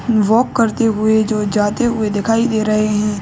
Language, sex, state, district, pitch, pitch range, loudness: Hindi, male, Uttar Pradesh, Gorakhpur, 220 Hz, 210-230 Hz, -15 LUFS